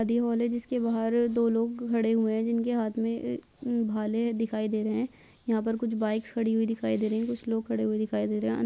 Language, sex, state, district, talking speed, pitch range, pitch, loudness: Hindi, female, Chhattisgarh, Bastar, 250 wpm, 215-235 Hz, 225 Hz, -29 LUFS